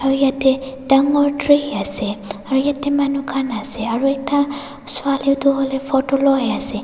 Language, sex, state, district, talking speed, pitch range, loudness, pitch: Nagamese, female, Nagaland, Dimapur, 150 wpm, 265-280 Hz, -18 LUFS, 275 Hz